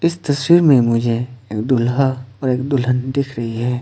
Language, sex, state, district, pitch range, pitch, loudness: Hindi, male, Arunachal Pradesh, Papum Pare, 120-140 Hz, 125 Hz, -17 LUFS